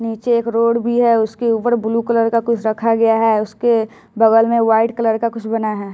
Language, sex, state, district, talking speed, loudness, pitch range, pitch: Hindi, male, Bihar, West Champaran, 230 wpm, -16 LUFS, 225-235 Hz, 230 Hz